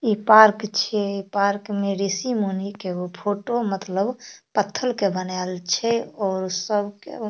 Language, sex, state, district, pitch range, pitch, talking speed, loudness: Maithili, female, Bihar, Darbhanga, 190-215 Hz, 200 Hz, 150 wpm, -22 LUFS